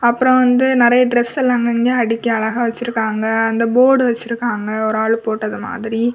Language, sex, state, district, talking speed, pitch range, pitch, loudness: Tamil, female, Tamil Nadu, Kanyakumari, 165 wpm, 225-245 Hz, 235 Hz, -16 LUFS